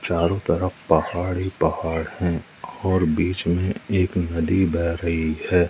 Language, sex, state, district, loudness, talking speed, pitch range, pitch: Hindi, male, Madhya Pradesh, Umaria, -23 LUFS, 145 wpm, 85-95 Hz, 85 Hz